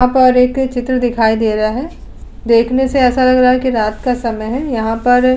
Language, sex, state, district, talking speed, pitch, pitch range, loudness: Hindi, female, Uttar Pradesh, Budaun, 245 wpm, 250 Hz, 230-255 Hz, -14 LUFS